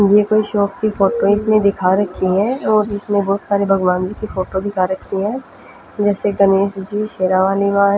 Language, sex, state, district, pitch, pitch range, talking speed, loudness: Hindi, female, Punjab, Fazilka, 200 Hz, 195-210 Hz, 180 wpm, -16 LUFS